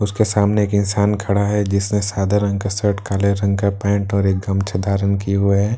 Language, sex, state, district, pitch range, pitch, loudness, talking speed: Hindi, male, Bihar, Katihar, 100-105 Hz, 100 Hz, -18 LUFS, 250 wpm